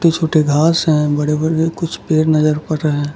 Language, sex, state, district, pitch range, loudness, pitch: Hindi, male, Gujarat, Valsad, 150-160 Hz, -15 LUFS, 155 Hz